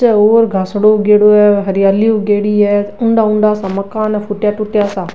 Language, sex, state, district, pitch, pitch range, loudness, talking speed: Rajasthani, female, Rajasthan, Nagaur, 210 Hz, 205-215 Hz, -12 LUFS, 165 wpm